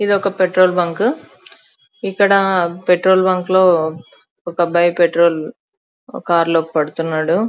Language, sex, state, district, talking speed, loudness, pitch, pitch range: Telugu, female, Andhra Pradesh, Chittoor, 105 wpm, -15 LUFS, 180 Hz, 170-190 Hz